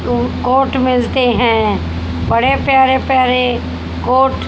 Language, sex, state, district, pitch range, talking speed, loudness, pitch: Hindi, female, Haryana, Jhajjar, 220-265 Hz, 120 wpm, -14 LUFS, 250 Hz